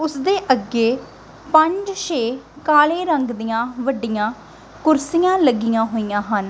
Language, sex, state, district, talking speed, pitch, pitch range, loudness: Punjabi, female, Punjab, Kapurthala, 110 wpm, 260 Hz, 230-315 Hz, -19 LUFS